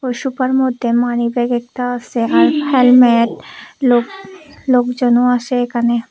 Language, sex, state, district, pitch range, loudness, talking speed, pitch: Bengali, female, Tripura, West Tripura, 240-260 Hz, -14 LUFS, 120 wpm, 245 Hz